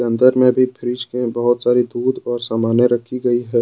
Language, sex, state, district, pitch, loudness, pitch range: Hindi, male, Jharkhand, Deoghar, 120 Hz, -17 LUFS, 120-125 Hz